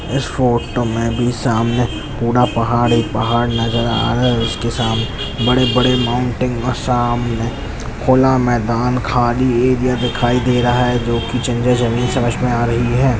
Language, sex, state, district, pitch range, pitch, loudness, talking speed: Hindi, male, Bihar, Jamui, 115-125 Hz, 120 Hz, -16 LUFS, 170 wpm